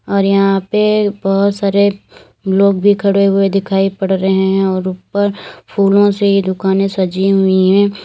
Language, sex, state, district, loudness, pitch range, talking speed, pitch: Hindi, female, Uttar Pradesh, Lalitpur, -13 LUFS, 190-200 Hz, 155 wpm, 195 Hz